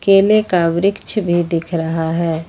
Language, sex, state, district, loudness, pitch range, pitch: Hindi, female, Jharkhand, Ranchi, -16 LUFS, 165-195 Hz, 175 Hz